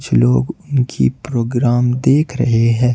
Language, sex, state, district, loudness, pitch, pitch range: Hindi, male, Jharkhand, Ranchi, -15 LUFS, 125 Hz, 115-130 Hz